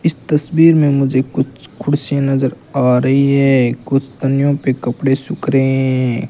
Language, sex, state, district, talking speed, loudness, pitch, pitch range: Hindi, male, Rajasthan, Bikaner, 160 wpm, -15 LUFS, 135 Hz, 130-145 Hz